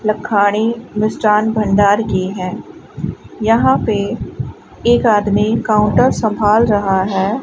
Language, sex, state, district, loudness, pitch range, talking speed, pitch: Hindi, female, Rajasthan, Bikaner, -15 LUFS, 205-220 Hz, 105 wpm, 215 Hz